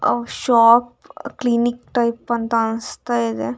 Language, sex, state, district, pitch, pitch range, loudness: Kannada, female, Karnataka, Dakshina Kannada, 235 Hz, 225-240 Hz, -18 LUFS